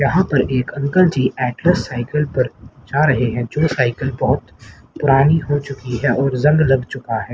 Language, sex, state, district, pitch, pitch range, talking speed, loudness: Hindi, male, Haryana, Rohtak, 135 Hz, 125-145 Hz, 190 wpm, -17 LUFS